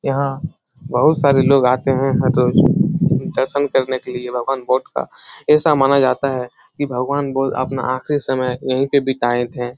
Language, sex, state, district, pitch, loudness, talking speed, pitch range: Hindi, male, Bihar, Supaul, 135 Hz, -17 LUFS, 180 wpm, 125-140 Hz